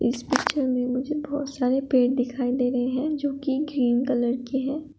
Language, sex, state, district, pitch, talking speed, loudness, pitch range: Hindi, female, Uttar Pradesh, Shamli, 260 Hz, 205 wpm, -25 LUFS, 250-280 Hz